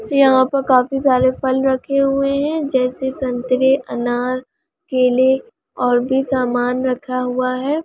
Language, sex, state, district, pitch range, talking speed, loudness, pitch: Hindi, female, Bihar, Vaishali, 255-275 Hz, 140 wpm, -17 LUFS, 260 Hz